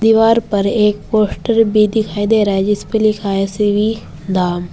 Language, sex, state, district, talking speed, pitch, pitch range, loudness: Hindi, female, Uttar Pradesh, Saharanpur, 190 wpm, 210 Hz, 200-220 Hz, -15 LUFS